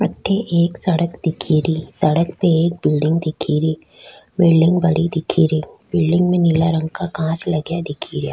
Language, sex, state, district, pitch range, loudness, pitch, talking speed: Rajasthani, female, Rajasthan, Nagaur, 155-170 Hz, -18 LUFS, 165 Hz, 175 wpm